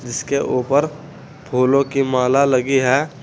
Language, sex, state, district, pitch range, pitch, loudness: Hindi, male, Uttar Pradesh, Saharanpur, 130-140 Hz, 135 Hz, -18 LUFS